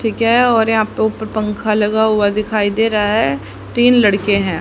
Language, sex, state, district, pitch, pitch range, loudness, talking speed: Hindi, female, Haryana, Charkhi Dadri, 215 Hz, 205-225 Hz, -15 LUFS, 210 wpm